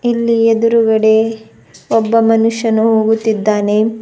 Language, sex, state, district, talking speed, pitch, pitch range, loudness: Kannada, female, Karnataka, Bidar, 75 wpm, 225 Hz, 220-230 Hz, -13 LUFS